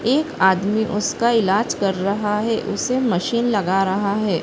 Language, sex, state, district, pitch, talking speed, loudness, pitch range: Hindi, female, Uttar Pradesh, Deoria, 210 Hz, 165 wpm, -19 LUFS, 195-235 Hz